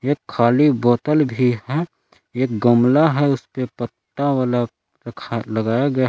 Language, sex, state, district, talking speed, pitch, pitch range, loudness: Hindi, male, Jharkhand, Palamu, 150 wpm, 125 Hz, 120-140 Hz, -19 LUFS